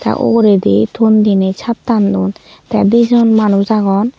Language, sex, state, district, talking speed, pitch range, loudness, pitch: Chakma, female, Tripura, Unakoti, 145 wpm, 195-230 Hz, -12 LUFS, 215 Hz